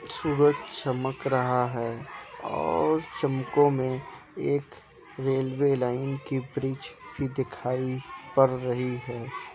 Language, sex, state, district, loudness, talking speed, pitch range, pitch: Hindi, male, Bihar, Kishanganj, -28 LUFS, 105 wpm, 125-140 Hz, 130 Hz